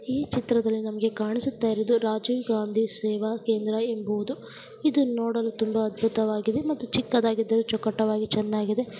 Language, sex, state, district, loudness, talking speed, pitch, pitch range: Kannada, female, Karnataka, Chamarajanagar, -26 LUFS, 115 wpm, 225 Hz, 215-240 Hz